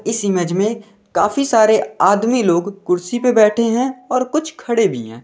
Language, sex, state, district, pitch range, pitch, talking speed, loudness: Hindi, male, Uttar Pradesh, Lalitpur, 200-245 Hz, 220 Hz, 185 wpm, -16 LUFS